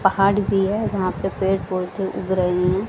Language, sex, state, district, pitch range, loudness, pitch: Hindi, female, Haryana, Charkhi Dadri, 185-195 Hz, -21 LUFS, 190 Hz